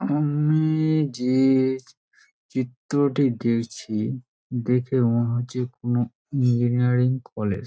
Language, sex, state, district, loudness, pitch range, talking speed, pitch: Bengali, male, West Bengal, Dakshin Dinajpur, -23 LUFS, 120-135 Hz, 85 wpm, 125 Hz